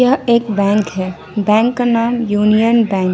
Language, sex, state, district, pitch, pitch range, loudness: Hindi, female, Jharkhand, Ranchi, 215 Hz, 200-235 Hz, -14 LUFS